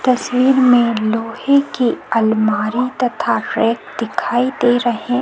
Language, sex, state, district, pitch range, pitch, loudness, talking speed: Hindi, female, Chhattisgarh, Korba, 225-250 Hz, 245 Hz, -16 LUFS, 125 wpm